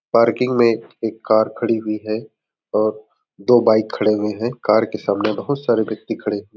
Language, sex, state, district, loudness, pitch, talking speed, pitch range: Hindi, male, Chhattisgarh, Raigarh, -19 LUFS, 110 Hz, 190 wpm, 105-115 Hz